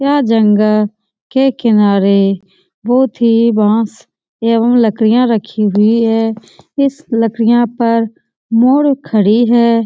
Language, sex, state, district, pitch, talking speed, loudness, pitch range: Hindi, female, Bihar, Lakhisarai, 225 Hz, 110 wpm, -12 LUFS, 215-240 Hz